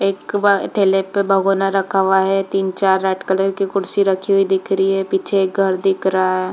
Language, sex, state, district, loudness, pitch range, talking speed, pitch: Hindi, female, Jharkhand, Jamtara, -17 LUFS, 190-195 Hz, 220 wpm, 195 Hz